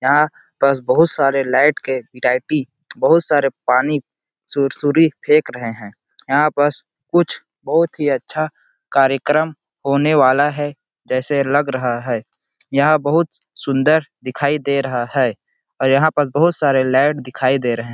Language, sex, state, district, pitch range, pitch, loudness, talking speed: Hindi, male, Chhattisgarh, Sarguja, 130-150 Hz, 140 Hz, -17 LUFS, 145 wpm